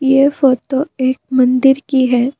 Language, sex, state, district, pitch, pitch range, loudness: Hindi, female, Assam, Kamrup Metropolitan, 265 Hz, 255-275 Hz, -14 LUFS